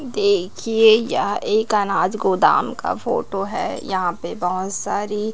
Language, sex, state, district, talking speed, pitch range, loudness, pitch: Hindi, female, Chhattisgarh, Raipur, 135 wpm, 190-220 Hz, -20 LUFS, 210 Hz